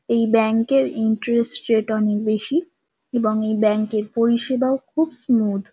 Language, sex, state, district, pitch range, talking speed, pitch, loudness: Bengali, female, West Bengal, Kolkata, 215-260 Hz, 155 wpm, 230 Hz, -20 LUFS